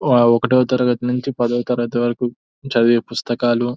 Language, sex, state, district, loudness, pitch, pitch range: Telugu, male, Telangana, Nalgonda, -18 LUFS, 120 Hz, 120-125 Hz